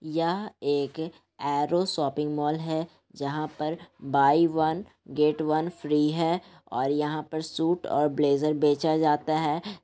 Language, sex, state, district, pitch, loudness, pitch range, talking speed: Hindi, male, Bihar, Gaya, 155 Hz, -27 LUFS, 150-165 Hz, 140 wpm